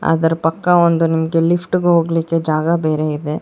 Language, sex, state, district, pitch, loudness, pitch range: Kannada, female, Karnataka, Bangalore, 165 Hz, -16 LUFS, 160-170 Hz